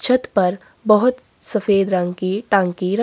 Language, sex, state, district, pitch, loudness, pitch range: Hindi, female, Chhattisgarh, Korba, 200 Hz, -18 LUFS, 185-220 Hz